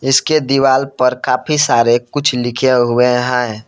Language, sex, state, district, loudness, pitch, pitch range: Hindi, male, Jharkhand, Palamu, -14 LUFS, 125 Hz, 120-135 Hz